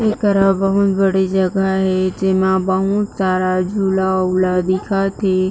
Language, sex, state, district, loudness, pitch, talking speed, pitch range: Chhattisgarhi, female, Chhattisgarh, Jashpur, -16 LUFS, 190 Hz, 130 wpm, 185-195 Hz